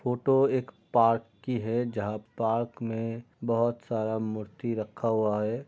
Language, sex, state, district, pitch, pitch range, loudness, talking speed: Hindi, male, Chhattisgarh, Raigarh, 115 Hz, 110-120 Hz, -29 LUFS, 150 wpm